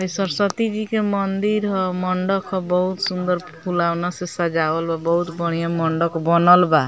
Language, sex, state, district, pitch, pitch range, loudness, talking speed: Bhojpuri, female, Bihar, Muzaffarpur, 180 Hz, 170-195 Hz, -20 LUFS, 165 wpm